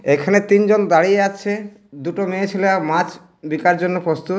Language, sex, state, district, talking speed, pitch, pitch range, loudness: Bengali, male, West Bengal, Purulia, 150 wpm, 190 Hz, 170-200 Hz, -17 LUFS